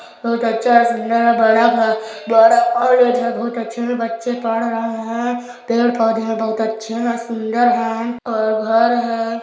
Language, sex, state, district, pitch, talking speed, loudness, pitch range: Hindi, male, Chhattisgarh, Balrampur, 230 Hz, 185 wpm, -17 LUFS, 225-240 Hz